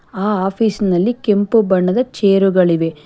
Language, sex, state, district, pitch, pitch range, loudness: Kannada, female, Karnataka, Bangalore, 195 Hz, 185-215 Hz, -15 LUFS